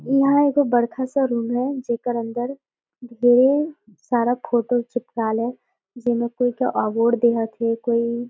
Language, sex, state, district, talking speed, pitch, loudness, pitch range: Surgujia, female, Chhattisgarh, Sarguja, 145 wpm, 240 Hz, -21 LUFS, 235-255 Hz